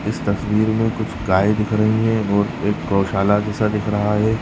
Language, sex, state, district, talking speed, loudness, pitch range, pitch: Bhojpuri, male, Uttar Pradesh, Gorakhpur, 205 wpm, -19 LUFS, 100-110 Hz, 105 Hz